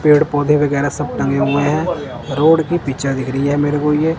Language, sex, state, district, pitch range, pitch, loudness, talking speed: Hindi, male, Punjab, Kapurthala, 135-150 Hz, 145 Hz, -16 LUFS, 215 wpm